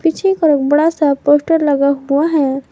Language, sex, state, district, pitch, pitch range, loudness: Hindi, female, Jharkhand, Garhwa, 295 Hz, 280-325 Hz, -14 LUFS